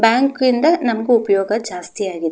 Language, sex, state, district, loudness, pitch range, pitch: Kannada, female, Karnataka, Mysore, -17 LUFS, 195-250 Hz, 225 Hz